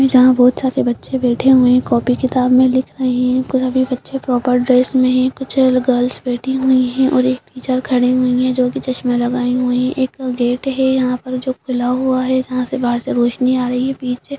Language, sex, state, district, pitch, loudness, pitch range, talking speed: Hindi, female, Uttarakhand, Uttarkashi, 255 Hz, -16 LUFS, 250-260 Hz, 225 wpm